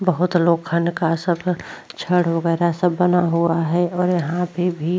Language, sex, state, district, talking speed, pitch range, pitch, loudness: Hindi, female, Uttar Pradesh, Jyotiba Phule Nagar, 155 wpm, 170-180 Hz, 175 Hz, -19 LUFS